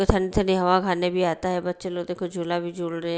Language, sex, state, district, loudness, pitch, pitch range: Hindi, female, Bihar, Patna, -25 LUFS, 180 Hz, 175-185 Hz